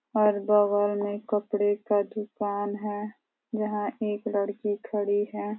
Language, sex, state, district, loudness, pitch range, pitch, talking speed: Hindi, female, Uttar Pradesh, Ghazipur, -28 LUFS, 205-210 Hz, 205 Hz, 130 wpm